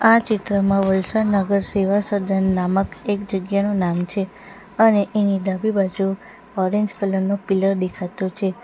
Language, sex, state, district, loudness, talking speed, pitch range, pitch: Gujarati, female, Gujarat, Valsad, -20 LUFS, 140 wpm, 190-205 Hz, 195 Hz